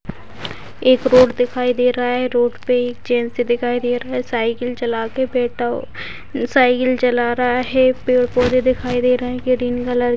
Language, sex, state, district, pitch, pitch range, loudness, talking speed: Hindi, female, Bihar, Purnia, 245 Hz, 245-255 Hz, -17 LUFS, 170 wpm